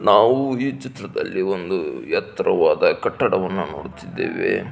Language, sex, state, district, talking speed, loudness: Kannada, male, Karnataka, Belgaum, 90 wpm, -21 LUFS